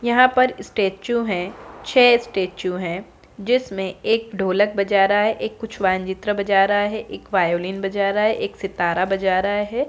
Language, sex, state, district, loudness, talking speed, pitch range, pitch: Hindi, female, Bihar, Gaya, -20 LUFS, 170 wpm, 190-220 Hz, 200 Hz